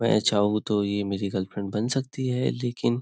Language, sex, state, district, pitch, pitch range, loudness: Hindi, male, Maharashtra, Nagpur, 105 Hz, 100-120 Hz, -26 LUFS